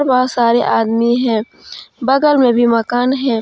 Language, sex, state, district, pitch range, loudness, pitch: Hindi, female, Jharkhand, Deoghar, 235-255 Hz, -14 LUFS, 245 Hz